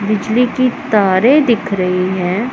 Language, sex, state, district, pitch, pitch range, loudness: Hindi, female, Punjab, Pathankot, 215 Hz, 190-250 Hz, -14 LUFS